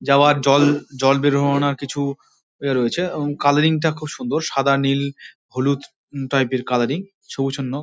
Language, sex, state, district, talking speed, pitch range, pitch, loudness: Bengali, male, West Bengal, Dakshin Dinajpur, 130 wpm, 135-145 Hz, 140 Hz, -19 LUFS